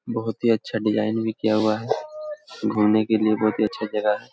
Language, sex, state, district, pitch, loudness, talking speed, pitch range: Hindi, male, Jharkhand, Jamtara, 110 Hz, -23 LUFS, 220 wpm, 110-115 Hz